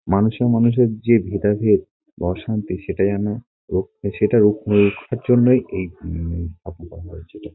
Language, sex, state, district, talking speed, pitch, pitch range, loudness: Bengali, male, West Bengal, Kolkata, 160 wpm, 105 Hz, 90-115 Hz, -19 LUFS